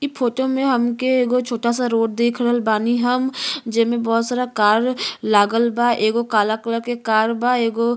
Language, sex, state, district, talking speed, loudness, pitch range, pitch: Bhojpuri, female, Uttar Pradesh, Gorakhpur, 195 wpm, -19 LUFS, 225-250 Hz, 235 Hz